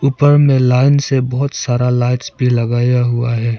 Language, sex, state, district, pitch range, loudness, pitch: Hindi, male, Arunachal Pradesh, Papum Pare, 120-140 Hz, -14 LUFS, 125 Hz